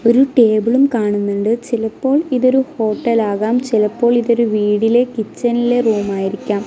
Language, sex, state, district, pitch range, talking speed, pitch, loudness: Malayalam, female, Kerala, Kasaragod, 210-245 Hz, 115 wpm, 230 Hz, -15 LUFS